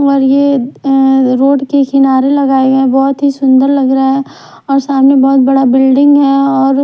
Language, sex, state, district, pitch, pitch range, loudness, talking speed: Hindi, female, Odisha, Khordha, 270 Hz, 265-275 Hz, -9 LUFS, 185 wpm